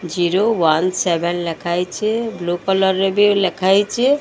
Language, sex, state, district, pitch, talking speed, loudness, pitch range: Odia, female, Odisha, Sambalpur, 190 Hz, 130 wpm, -17 LUFS, 175-205 Hz